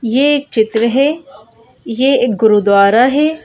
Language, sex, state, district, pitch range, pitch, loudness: Hindi, female, Madhya Pradesh, Bhopal, 225-280 Hz, 250 Hz, -12 LUFS